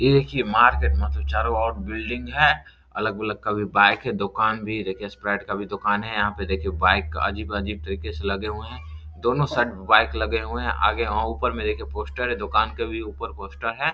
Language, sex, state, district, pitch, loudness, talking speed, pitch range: Hindi, male, Bihar, Samastipur, 100 Hz, -23 LUFS, 215 wpm, 85-110 Hz